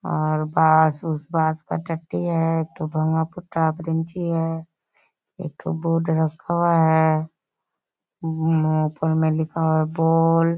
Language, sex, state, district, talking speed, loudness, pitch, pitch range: Hindi, female, Bihar, Sitamarhi, 125 wpm, -22 LUFS, 160 Hz, 160-165 Hz